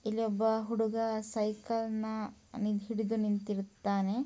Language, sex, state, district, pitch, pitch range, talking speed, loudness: Kannada, female, Karnataka, Mysore, 220 Hz, 210-225 Hz, 85 wpm, -34 LUFS